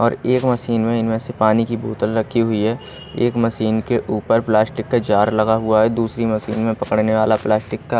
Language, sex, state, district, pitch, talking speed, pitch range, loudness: Hindi, male, Odisha, Malkangiri, 110 Hz, 215 wpm, 110-115 Hz, -18 LUFS